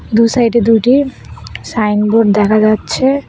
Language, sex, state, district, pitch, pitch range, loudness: Bengali, female, West Bengal, Cooch Behar, 225 Hz, 215-245 Hz, -12 LUFS